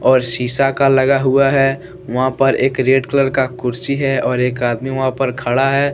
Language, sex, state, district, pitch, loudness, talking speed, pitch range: Hindi, male, Jharkhand, Deoghar, 135 Hz, -15 LUFS, 210 wpm, 130-135 Hz